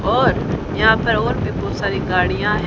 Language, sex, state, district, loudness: Hindi, female, Haryana, Rohtak, -18 LUFS